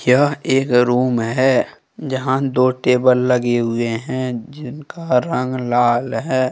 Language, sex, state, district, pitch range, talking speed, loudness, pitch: Hindi, male, Jharkhand, Deoghar, 125-130 Hz, 140 wpm, -17 LUFS, 125 Hz